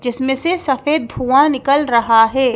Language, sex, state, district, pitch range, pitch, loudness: Hindi, male, Madhya Pradesh, Bhopal, 245-290 Hz, 265 Hz, -15 LUFS